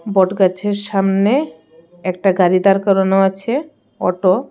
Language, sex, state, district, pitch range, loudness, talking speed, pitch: Bengali, female, Tripura, West Tripura, 185-205 Hz, -16 LUFS, 120 wpm, 195 Hz